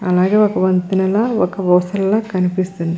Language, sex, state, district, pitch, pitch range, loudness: Telugu, female, Andhra Pradesh, Krishna, 185 Hz, 180-200 Hz, -16 LUFS